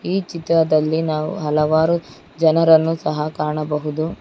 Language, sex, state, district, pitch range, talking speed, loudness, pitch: Kannada, female, Karnataka, Bangalore, 150-165 Hz, 100 wpm, -18 LUFS, 160 Hz